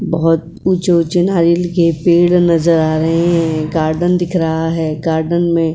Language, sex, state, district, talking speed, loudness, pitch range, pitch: Hindi, female, Uttar Pradesh, Etah, 165 wpm, -14 LUFS, 160-175 Hz, 170 Hz